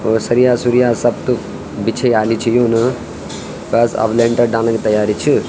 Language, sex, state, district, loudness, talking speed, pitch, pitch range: Garhwali, male, Uttarakhand, Tehri Garhwal, -15 LUFS, 155 wpm, 115 Hz, 110-120 Hz